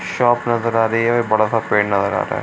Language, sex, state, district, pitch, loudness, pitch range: Hindi, male, Bihar, Supaul, 115 Hz, -17 LUFS, 105-120 Hz